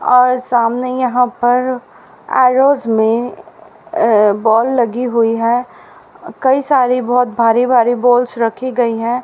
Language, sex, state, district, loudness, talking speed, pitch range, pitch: Hindi, female, Haryana, Rohtak, -14 LUFS, 130 wpm, 230-255 Hz, 245 Hz